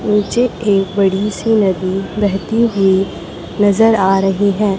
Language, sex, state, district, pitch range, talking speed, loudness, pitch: Hindi, female, Chhattisgarh, Raipur, 195-210 Hz, 135 wpm, -14 LUFS, 200 Hz